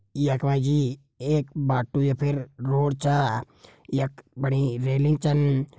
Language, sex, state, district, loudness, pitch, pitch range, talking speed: Garhwali, male, Uttarakhand, Tehri Garhwal, -25 LUFS, 140 Hz, 135-145 Hz, 135 wpm